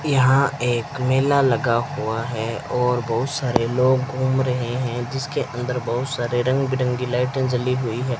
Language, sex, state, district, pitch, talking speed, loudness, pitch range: Hindi, male, Rajasthan, Bikaner, 125 Hz, 170 wpm, -21 LUFS, 120-130 Hz